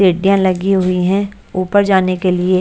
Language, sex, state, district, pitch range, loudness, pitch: Hindi, female, Haryana, Charkhi Dadri, 185-195 Hz, -14 LUFS, 185 Hz